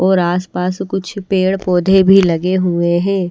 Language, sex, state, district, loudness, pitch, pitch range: Hindi, female, Haryana, Rohtak, -14 LUFS, 185 Hz, 180-190 Hz